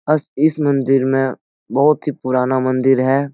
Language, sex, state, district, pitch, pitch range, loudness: Hindi, male, Bihar, Jahanabad, 135 Hz, 130-145 Hz, -17 LUFS